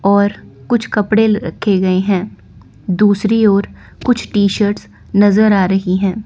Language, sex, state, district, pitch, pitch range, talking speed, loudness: Hindi, female, Chandigarh, Chandigarh, 200 Hz, 190-215 Hz, 155 wpm, -14 LUFS